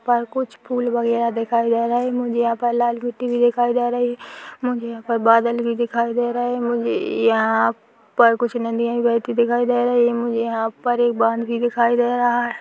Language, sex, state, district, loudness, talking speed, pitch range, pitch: Hindi, female, Chhattisgarh, Bilaspur, -20 LUFS, 230 wpm, 235-240 Hz, 235 Hz